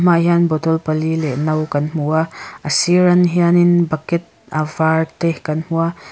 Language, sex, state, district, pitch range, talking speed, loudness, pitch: Mizo, female, Mizoram, Aizawl, 155-170 Hz, 175 wpm, -17 LUFS, 160 Hz